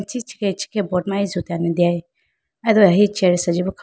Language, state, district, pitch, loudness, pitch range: Idu Mishmi, Arunachal Pradesh, Lower Dibang Valley, 195 Hz, -19 LUFS, 175-205 Hz